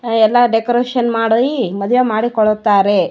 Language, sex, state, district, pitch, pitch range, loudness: Kannada, female, Karnataka, Bellary, 230 Hz, 215-245 Hz, -14 LUFS